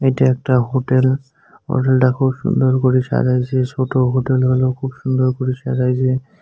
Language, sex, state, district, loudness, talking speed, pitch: Bengali, male, West Bengal, Cooch Behar, -17 LUFS, 140 wpm, 130 Hz